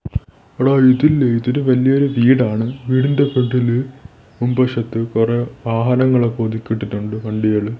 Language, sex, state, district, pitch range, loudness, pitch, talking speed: Malayalam, male, Kerala, Thiruvananthapuram, 115-130 Hz, -16 LUFS, 120 Hz, 110 wpm